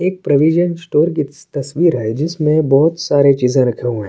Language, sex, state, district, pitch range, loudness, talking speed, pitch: Urdu, male, Uttar Pradesh, Budaun, 135-165 Hz, -15 LUFS, 190 wpm, 150 Hz